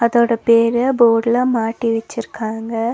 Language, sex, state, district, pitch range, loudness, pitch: Tamil, female, Tamil Nadu, Nilgiris, 225-235 Hz, -16 LUFS, 230 Hz